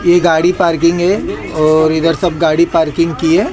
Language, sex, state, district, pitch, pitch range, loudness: Hindi, male, Maharashtra, Mumbai Suburban, 165 Hz, 160-175 Hz, -12 LUFS